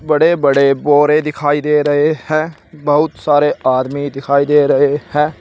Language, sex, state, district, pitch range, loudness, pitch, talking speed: Hindi, male, Uttar Pradesh, Shamli, 140-155 Hz, -14 LUFS, 150 Hz, 155 wpm